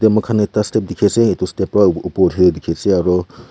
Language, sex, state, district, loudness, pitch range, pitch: Nagamese, male, Nagaland, Kohima, -16 LUFS, 90-110 Hz, 100 Hz